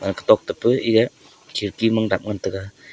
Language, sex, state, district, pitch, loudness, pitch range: Wancho, male, Arunachal Pradesh, Longding, 105 Hz, -21 LUFS, 95-115 Hz